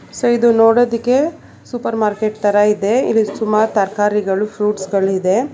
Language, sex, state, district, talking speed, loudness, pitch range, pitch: Kannada, female, Karnataka, Bangalore, 140 wpm, -16 LUFS, 205-230 Hz, 215 Hz